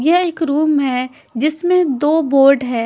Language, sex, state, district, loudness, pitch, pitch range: Hindi, female, Chhattisgarh, Raipur, -15 LUFS, 295 Hz, 270-320 Hz